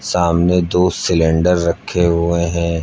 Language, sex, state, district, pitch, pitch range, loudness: Hindi, male, Uttar Pradesh, Lucknow, 85 Hz, 85-90 Hz, -15 LUFS